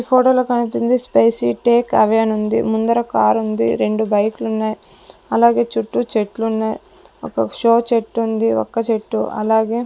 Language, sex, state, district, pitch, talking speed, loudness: Telugu, female, Andhra Pradesh, Sri Satya Sai, 220 Hz, 170 wpm, -17 LUFS